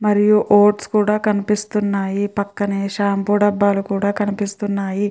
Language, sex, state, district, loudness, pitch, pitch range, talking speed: Telugu, female, Andhra Pradesh, Chittoor, -18 LUFS, 205 Hz, 200-210 Hz, 105 wpm